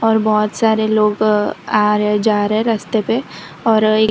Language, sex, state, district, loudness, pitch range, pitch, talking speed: Hindi, female, Gujarat, Valsad, -16 LUFS, 210-220 Hz, 215 Hz, 160 wpm